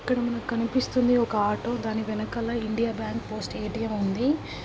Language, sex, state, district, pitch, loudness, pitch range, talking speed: Telugu, female, Andhra Pradesh, Guntur, 230 Hz, -27 LUFS, 220-240 Hz, 140 wpm